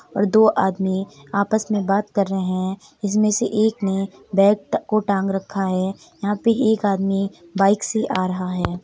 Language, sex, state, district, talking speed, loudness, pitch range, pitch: Hindi, female, Uttar Pradesh, Varanasi, 185 wpm, -21 LUFS, 190-215 Hz, 200 Hz